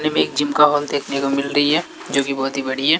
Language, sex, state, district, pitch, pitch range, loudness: Hindi, male, Bihar, West Champaran, 145 Hz, 140-150 Hz, -19 LUFS